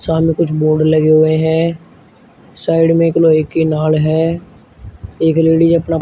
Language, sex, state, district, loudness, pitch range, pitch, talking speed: Hindi, male, Uttar Pradesh, Shamli, -13 LUFS, 155-165 Hz, 160 Hz, 170 wpm